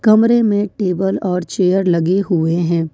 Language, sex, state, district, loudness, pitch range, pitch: Hindi, female, Jharkhand, Ranchi, -16 LUFS, 170-205 Hz, 185 Hz